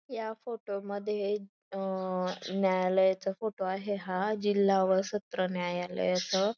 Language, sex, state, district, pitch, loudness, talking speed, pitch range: Marathi, female, Maharashtra, Dhule, 195 Hz, -31 LUFS, 120 wpm, 185-205 Hz